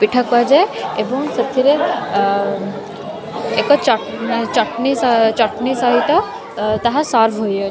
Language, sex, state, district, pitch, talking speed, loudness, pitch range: Odia, female, Odisha, Khordha, 230 Hz, 125 wpm, -16 LUFS, 215-270 Hz